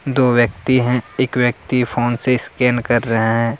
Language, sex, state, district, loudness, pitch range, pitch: Hindi, male, Jharkhand, Deoghar, -17 LUFS, 120-125 Hz, 125 Hz